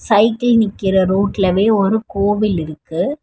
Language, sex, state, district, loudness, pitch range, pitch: Tamil, female, Tamil Nadu, Chennai, -16 LUFS, 190-220 Hz, 205 Hz